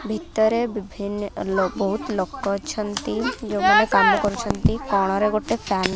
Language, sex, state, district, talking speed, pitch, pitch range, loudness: Odia, female, Odisha, Khordha, 130 wpm, 205 Hz, 195-220 Hz, -22 LUFS